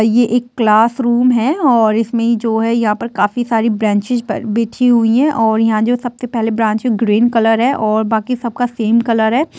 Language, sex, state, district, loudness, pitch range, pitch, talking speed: Hindi, female, Bihar, Sitamarhi, -14 LUFS, 220-245 Hz, 230 Hz, 205 wpm